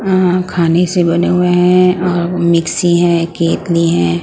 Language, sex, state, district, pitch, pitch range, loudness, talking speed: Hindi, female, Punjab, Pathankot, 175 Hz, 170-180 Hz, -12 LUFS, 155 wpm